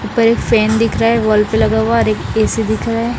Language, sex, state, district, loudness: Hindi, female, Bihar, Patna, -14 LUFS